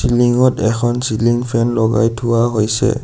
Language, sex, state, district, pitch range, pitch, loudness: Assamese, male, Assam, Sonitpur, 110-120 Hz, 115 Hz, -15 LUFS